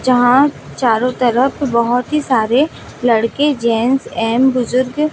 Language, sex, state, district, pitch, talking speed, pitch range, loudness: Hindi, female, Chhattisgarh, Raipur, 250 Hz, 115 wpm, 235-270 Hz, -15 LUFS